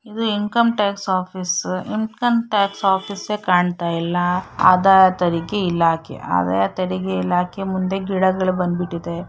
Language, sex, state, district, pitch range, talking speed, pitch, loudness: Kannada, female, Karnataka, Shimoga, 175-200 Hz, 125 wpm, 185 Hz, -19 LUFS